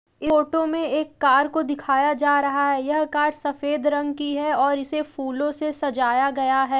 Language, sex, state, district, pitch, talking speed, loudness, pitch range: Hindi, female, Uttar Pradesh, Jalaun, 290 Hz, 195 wpm, -22 LUFS, 275-300 Hz